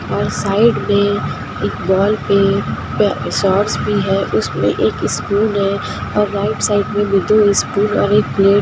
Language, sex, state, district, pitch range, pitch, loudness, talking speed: Hindi, female, Bihar, Kishanganj, 200-210 Hz, 205 Hz, -16 LUFS, 165 wpm